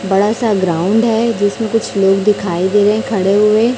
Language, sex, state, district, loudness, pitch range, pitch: Hindi, female, Chhattisgarh, Raipur, -14 LUFS, 195-225 Hz, 205 Hz